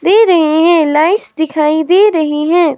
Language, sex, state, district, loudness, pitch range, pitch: Hindi, female, Himachal Pradesh, Shimla, -11 LUFS, 310-355 Hz, 320 Hz